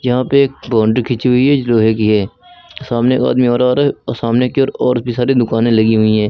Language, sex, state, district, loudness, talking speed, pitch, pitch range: Hindi, male, Uttar Pradesh, Lucknow, -14 LUFS, 255 wpm, 125 Hz, 115-130 Hz